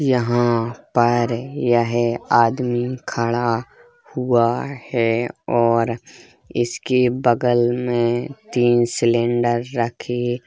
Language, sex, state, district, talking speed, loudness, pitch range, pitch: Hindi, male, Uttar Pradesh, Jalaun, 85 wpm, -20 LUFS, 120-125 Hz, 120 Hz